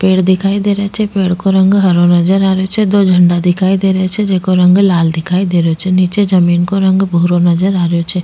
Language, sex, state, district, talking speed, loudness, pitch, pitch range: Rajasthani, female, Rajasthan, Nagaur, 255 wpm, -11 LUFS, 185 Hz, 175-195 Hz